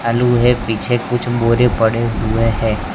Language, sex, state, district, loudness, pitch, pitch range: Hindi, male, Gujarat, Gandhinagar, -16 LUFS, 115 Hz, 110-120 Hz